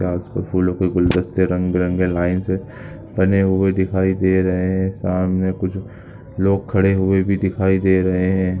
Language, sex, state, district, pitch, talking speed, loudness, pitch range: Hindi, male, Chhattisgarh, Bilaspur, 95 Hz, 165 wpm, -18 LUFS, 90-95 Hz